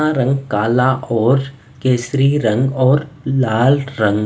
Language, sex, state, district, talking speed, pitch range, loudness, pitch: Hindi, male, Odisha, Nuapada, 125 wpm, 120-140 Hz, -16 LUFS, 130 Hz